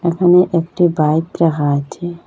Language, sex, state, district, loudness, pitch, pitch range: Bengali, female, Assam, Hailakandi, -15 LUFS, 170 Hz, 155-175 Hz